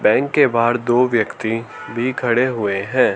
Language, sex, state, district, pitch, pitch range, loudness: Hindi, male, Haryana, Charkhi Dadri, 120 Hz, 115-125 Hz, -18 LUFS